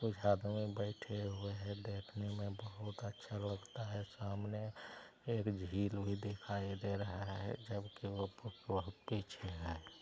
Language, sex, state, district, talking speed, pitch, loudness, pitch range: Hindi, male, Bihar, Araria, 150 wpm, 100 Hz, -43 LUFS, 100-105 Hz